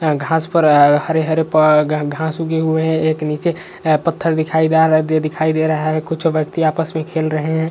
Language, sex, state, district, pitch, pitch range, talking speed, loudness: Hindi, male, Uttar Pradesh, Varanasi, 160 Hz, 155-160 Hz, 210 wpm, -16 LUFS